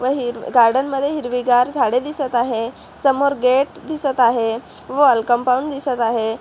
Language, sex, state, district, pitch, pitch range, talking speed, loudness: Marathi, female, Maharashtra, Chandrapur, 255 Hz, 240-275 Hz, 150 wpm, -18 LUFS